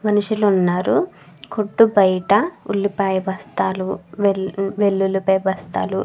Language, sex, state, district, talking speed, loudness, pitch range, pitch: Telugu, female, Andhra Pradesh, Krishna, 100 wpm, -19 LUFS, 190-205 Hz, 195 Hz